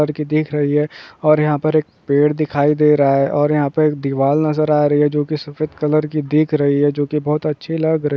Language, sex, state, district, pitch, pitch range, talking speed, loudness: Hindi, male, West Bengal, Purulia, 150 Hz, 145-155 Hz, 280 wpm, -17 LUFS